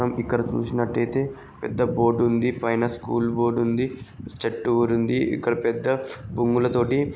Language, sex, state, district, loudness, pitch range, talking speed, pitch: Telugu, male, Andhra Pradesh, Guntur, -24 LUFS, 120-125 Hz, 135 wpm, 120 Hz